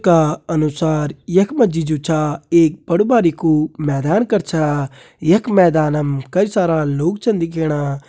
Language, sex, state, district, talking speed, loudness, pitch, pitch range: Kumaoni, male, Uttarakhand, Uttarkashi, 150 wpm, -17 LUFS, 160 Hz, 150-180 Hz